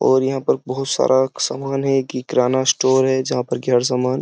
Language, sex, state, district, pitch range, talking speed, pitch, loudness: Hindi, male, Uttar Pradesh, Jyotiba Phule Nagar, 125-130 Hz, 240 wpm, 130 Hz, -18 LUFS